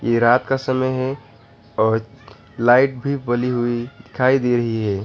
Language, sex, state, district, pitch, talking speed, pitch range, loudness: Hindi, male, West Bengal, Alipurduar, 120 Hz, 165 wpm, 115-130 Hz, -19 LUFS